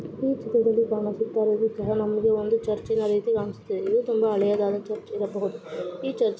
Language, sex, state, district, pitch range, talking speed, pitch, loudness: Kannada, female, Karnataka, Shimoga, 210-230 Hz, 150 wpm, 220 Hz, -25 LUFS